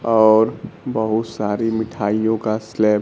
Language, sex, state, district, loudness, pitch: Hindi, male, Bihar, Kaimur, -19 LUFS, 110 Hz